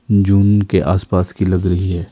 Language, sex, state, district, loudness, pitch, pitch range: Hindi, male, Himachal Pradesh, Shimla, -15 LUFS, 95 Hz, 90-100 Hz